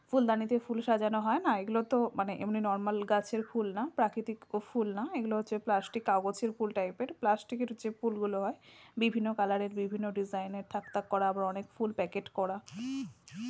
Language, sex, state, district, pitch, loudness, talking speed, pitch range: Bengali, female, West Bengal, Jhargram, 215 Hz, -33 LUFS, 190 wpm, 200-230 Hz